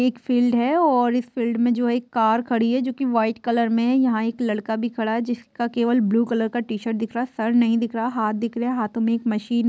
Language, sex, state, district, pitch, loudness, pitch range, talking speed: Hindi, female, Bihar, Sitamarhi, 235 Hz, -22 LUFS, 225-245 Hz, 285 wpm